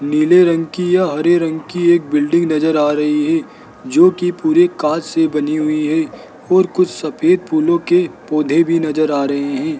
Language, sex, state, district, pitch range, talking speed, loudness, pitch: Hindi, male, Rajasthan, Jaipur, 155-185 Hz, 190 wpm, -15 LUFS, 165 Hz